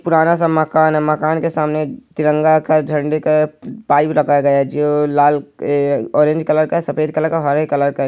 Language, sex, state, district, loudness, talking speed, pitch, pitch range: Hindi, male, Bihar, Araria, -15 LUFS, 225 wpm, 155 Hz, 145-155 Hz